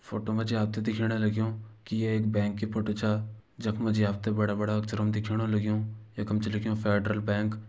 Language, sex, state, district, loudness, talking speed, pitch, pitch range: Garhwali, male, Uttarakhand, Uttarkashi, -30 LUFS, 225 wpm, 110 Hz, 105-110 Hz